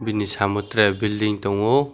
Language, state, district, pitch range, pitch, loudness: Kokborok, Tripura, West Tripura, 100-110 Hz, 105 Hz, -21 LUFS